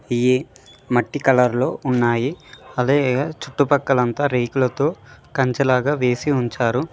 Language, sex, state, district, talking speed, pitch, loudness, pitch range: Telugu, male, Telangana, Mahabubabad, 120 wpm, 130 Hz, -20 LUFS, 125-145 Hz